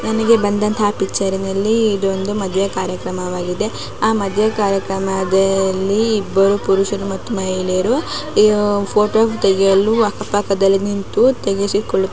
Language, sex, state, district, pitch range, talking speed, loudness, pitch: Kannada, female, Karnataka, Mysore, 195-210 Hz, 115 wpm, -17 LUFS, 200 Hz